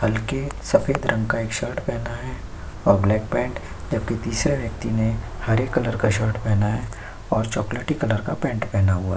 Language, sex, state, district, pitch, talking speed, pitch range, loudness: Hindi, male, Uttar Pradesh, Jyotiba Phule Nagar, 110 Hz, 195 wpm, 105-115 Hz, -23 LUFS